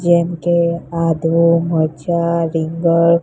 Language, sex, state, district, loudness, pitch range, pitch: Gujarati, female, Gujarat, Gandhinagar, -16 LUFS, 165-170 Hz, 170 Hz